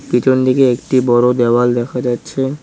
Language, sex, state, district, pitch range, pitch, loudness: Bengali, male, West Bengal, Cooch Behar, 120-130 Hz, 125 Hz, -14 LUFS